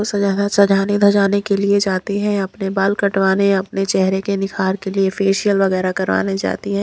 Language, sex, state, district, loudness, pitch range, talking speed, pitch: Hindi, female, Punjab, Kapurthala, -17 LUFS, 190-200 Hz, 175 wpm, 195 Hz